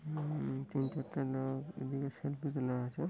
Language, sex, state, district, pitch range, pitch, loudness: Bengali, male, West Bengal, North 24 Parganas, 135-150 Hz, 135 Hz, -39 LUFS